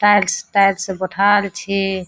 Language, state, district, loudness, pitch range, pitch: Surjapuri, Bihar, Kishanganj, -17 LUFS, 190-205 Hz, 195 Hz